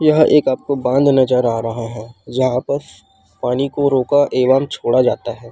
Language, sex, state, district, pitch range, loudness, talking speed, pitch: Chhattisgarhi, male, Chhattisgarh, Rajnandgaon, 115-140 Hz, -16 LUFS, 185 wpm, 130 Hz